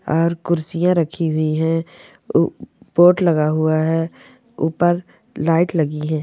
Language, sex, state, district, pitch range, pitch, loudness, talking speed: Hindi, female, Rajasthan, Churu, 155-175 Hz, 165 Hz, -18 LUFS, 125 wpm